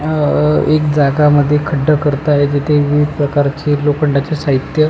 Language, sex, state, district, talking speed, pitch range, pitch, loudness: Marathi, male, Maharashtra, Pune, 135 wpm, 145-150 Hz, 145 Hz, -13 LUFS